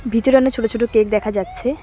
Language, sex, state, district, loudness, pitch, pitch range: Bengali, female, West Bengal, Cooch Behar, -17 LUFS, 235 Hz, 215-255 Hz